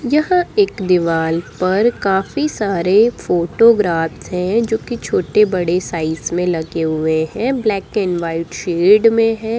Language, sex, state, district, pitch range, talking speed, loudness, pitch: Hindi, female, Bihar, Lakhisarai, 170-225 Hz, 135 wpm, -16 LUFS, 190 Hz